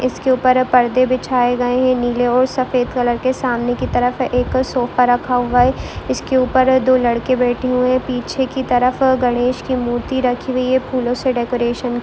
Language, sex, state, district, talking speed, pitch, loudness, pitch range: Hindi, female, Bihar, Muzaffarpur, 190 wpm, 250 Hz, -16 LUFS, 245-255 Hz